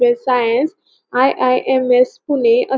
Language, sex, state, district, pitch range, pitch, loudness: Marathi, female, Maharashtra, Pune, 245-265 Hz, 255 Hz, -15 LUFS